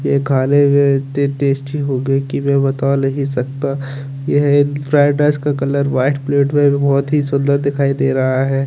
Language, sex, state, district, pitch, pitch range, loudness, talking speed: Hindi, male, Chandigarh, Chandigarh, 140 Hz, 135-140 Hz, -16 LUFS, 180 wpm